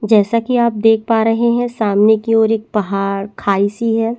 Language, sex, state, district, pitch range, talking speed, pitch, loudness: Hindi, female, Chhattisgarh, Bastar, 210-230 Hz, 200 wpm, 220 Hz, -15 LUFS